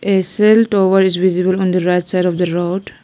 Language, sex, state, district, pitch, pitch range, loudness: English, female, Arunachal Pradesh, Lower Dibang Valley, 185 Hz, 180-195 Hz, -14 LUFS